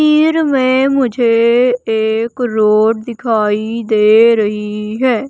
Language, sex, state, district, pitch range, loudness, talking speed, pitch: Hindi, female, Madhya Pradesh, Umaria, 220-255 Hz, -13 LUFS, 100 wpm, 230 Hz